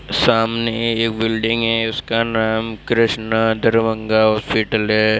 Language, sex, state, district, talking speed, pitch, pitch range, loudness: Hindi, male, Bihar, Darbhanga, 115 wpm, 115 Hz, 110-115 Hz, -17 LUFS